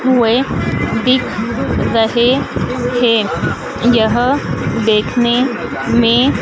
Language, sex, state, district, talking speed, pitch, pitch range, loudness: Hindi, female, Madhya Pradesh, Dhar, 65 wpm, 240 Hz, 230-255 Hz, -14 LUFS